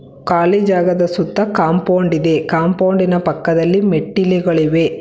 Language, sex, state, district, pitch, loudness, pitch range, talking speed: Kannada, female, Karnataka, Bangalore, 175 Hz, -15 LUFS, 165-185 Hz, 95 wpm